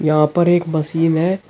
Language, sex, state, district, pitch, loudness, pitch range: Hindi, male, Uttar Pradesh, Shamli, 165 Hz, -16 LUFS, 155-175 Hz